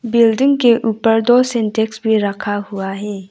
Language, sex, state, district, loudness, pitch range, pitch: Hindi, female, Arunachal Pradesh, Lower Dibang Valley, -15 LUFS, 205-235 Hz, 220 Hz